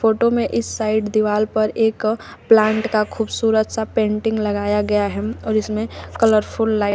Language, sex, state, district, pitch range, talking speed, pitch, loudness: Hindi, female, Uttar Pradesh, Shamli, 210-220 Hz, 170 wpm, 215 Hz, -19 LUFS